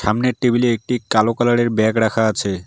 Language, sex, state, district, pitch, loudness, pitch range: Bengali, male, West Bengal, Alipurduar, 115 Hz, -17 LUFS, 110-120 Hz